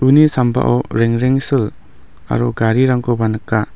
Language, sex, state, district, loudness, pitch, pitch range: Garo, male, Meghalaya, West Garo Hills, -15 LUFS, 120 Hz, 110-130 Hz